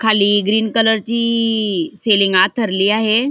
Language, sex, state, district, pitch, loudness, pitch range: Marathi, female, Maharashtra, Dhule, 220 Hz, -15 LUFS, 200-225 Hz